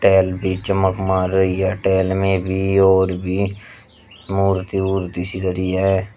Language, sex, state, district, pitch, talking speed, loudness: Hindi, male, Uttar Pradesh, Shamli, 95 Hz, 155 wpm, -19 LUFS